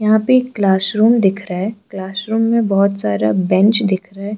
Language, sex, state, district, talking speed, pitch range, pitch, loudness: Hindi, female, Arunachal Pradesh, Lower Dibang Valley, 235 wpm, 190-220 Hz, 200 Hz, -15 LUFS